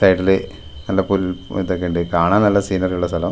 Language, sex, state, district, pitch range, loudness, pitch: Malayalam, male, Kerala, Wayanad, 85-95 Hz, -18 LUFS, 95 Hz